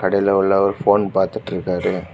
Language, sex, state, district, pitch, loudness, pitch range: Tamil, male, Tamil Nadu, Kanyakumari, 100 Hz, -18 LUFS, 95-100 Hz